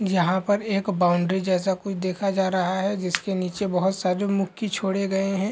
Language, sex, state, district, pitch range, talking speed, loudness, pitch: Hindi, male, Bihar, Lakhisarai, 185-200 Hz, 195 wpm, -24 LUFS, 190 Hz